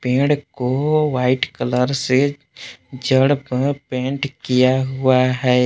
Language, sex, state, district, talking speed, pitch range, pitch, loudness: Hindi, male, Jharkhand, Palamu, 115 wpm, 125-140 Hz, 130 Hz, -18 LUFS